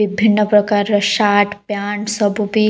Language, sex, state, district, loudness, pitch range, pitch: Odia, female, Odisha, Khordha, -16 LUFS, 205-210 Hz, 205 Hz